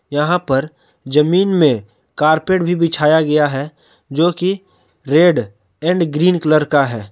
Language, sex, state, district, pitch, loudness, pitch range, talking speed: Hindi, male, Jharkhand, Palamu, 155 Hz, -15 LUFS, 135-175 Hz, 145 wpm